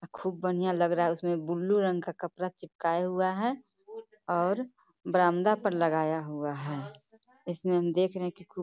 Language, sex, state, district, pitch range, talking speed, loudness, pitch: Hindi, female, Bihar, Muzaffarpur, 170-195 Hz, 180 wpm, -30 LUFS, 180 Hz